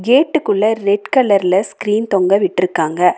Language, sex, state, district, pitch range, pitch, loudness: Tamil, female, Tamil Nadu, Nilgiris, 190-220 Hz, 200 Hz, -15 LUFS